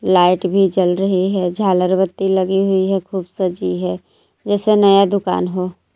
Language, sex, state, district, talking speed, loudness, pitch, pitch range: Hindi, female, Jharkhand, Garhwa, 170 wpm, -16 LUFS, 190 Hz, 180-195 Hz